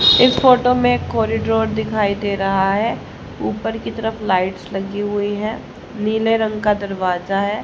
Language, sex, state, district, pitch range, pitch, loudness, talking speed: Hindi, female, Haryana, Rohtak, 195-225 Hz, 205 Hz, -18 LUFS, 165 wpm